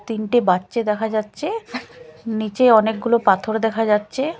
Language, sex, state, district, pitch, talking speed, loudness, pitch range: Bengali, female, Chhattisgarh, Raipur, 220 Hz, 125 wpm, -19 LUFS, 210-240 Hz